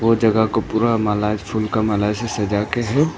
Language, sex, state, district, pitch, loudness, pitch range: Hindi, male, Arunachal Pradesh, Papum Pare, 110 Hz, -19 LUFS, 105-115 Hz